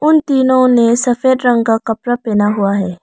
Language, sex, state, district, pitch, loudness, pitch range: Hindi, female, Arunachal Pradesh, Lower Dibang Valley, 240 Hz, -13 LUFS, 215-255 Hz